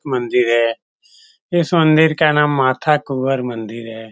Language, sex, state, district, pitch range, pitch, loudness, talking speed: Hindi, male, Bihar, Saran, 120-160 Hz, 135 Hz, -16 LUFS, 160 wpm